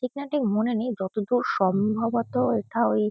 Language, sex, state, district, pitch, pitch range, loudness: Bengali, female, West Bengal, Kolkata, 230 Hz, 205-245 Hz, -25 LUFS